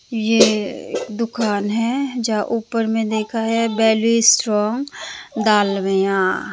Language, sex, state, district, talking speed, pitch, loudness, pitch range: Hindi, female, Tripura, Dhalai, 110 wpm, 225 Hz, -18 LUFS, 210-230 Hz